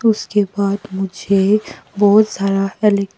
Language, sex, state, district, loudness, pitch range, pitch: Hindi, female, Arunachal Pradesh, Papum Pare, -16 LUFS, 195-210 Hz, 200 Hz